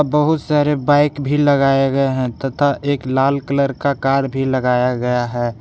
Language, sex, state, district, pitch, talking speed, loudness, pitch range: Hindi, male, Jharkhand, Garhwa, 135 Hz, 180 wpm, -17 LUFS, 130-145 Hz